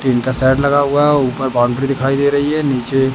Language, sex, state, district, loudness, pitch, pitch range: Hindi, male, Madhya Pradesh, Katni, -15 LUFS, 135 Hz, 130-140 Hz